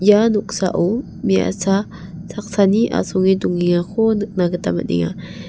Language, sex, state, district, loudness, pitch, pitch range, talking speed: Garo, female, Meghalaya, West Garo Hills, -18 LUFS, 190 Hz, 175-210 Hz, 100 wpm